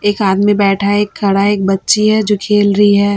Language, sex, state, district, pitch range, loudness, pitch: Hindi, female, Chhattisgarh, Raipur, 200-205 Hz, -12 LUFS, 205 Hz